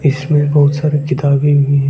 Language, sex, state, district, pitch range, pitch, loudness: Hindi, male, Arunachal Pradesh, Lower Dibang Valley, 140-145 Hz, 145 Hz, -13 LUFS